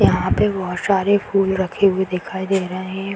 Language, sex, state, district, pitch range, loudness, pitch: Hindi, female, Bihar, Darbhanga, 185-195 Hz, -19 LUFS, 190 Hz